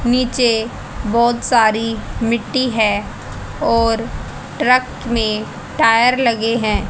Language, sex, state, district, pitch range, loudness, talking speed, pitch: Hindi, female, Haryana, Charkhi Dadri, 225-245 Hz, -16 LUFS, 95 wpm, 230 Hz